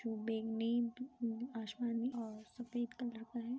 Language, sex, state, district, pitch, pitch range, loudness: Hindi, female, Chhattisgarh, Sarguja, 235 Hz, 225-245 Hz, -41 LUFS